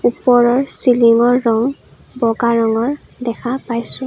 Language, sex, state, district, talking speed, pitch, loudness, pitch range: Assamese, female, Assam, Kamrup Metropolitan, 105 wpm, 240 Hz, -15 LUFS, 235-250 Hz